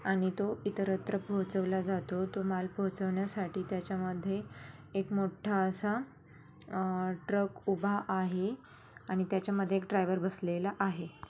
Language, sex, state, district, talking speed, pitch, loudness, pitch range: Marathi, female, Maharashtra, Dhule, 115 wpm, 190 Hz, -34 LUFS, 185-195 Hz